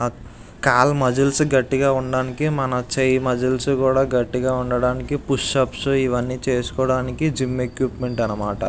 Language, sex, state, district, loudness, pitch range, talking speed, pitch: Telugu, male, Andhra Pradesh, Visakhapatnam, -20 LUFS, 125-135 Hz, 115 wpm, 130 Hz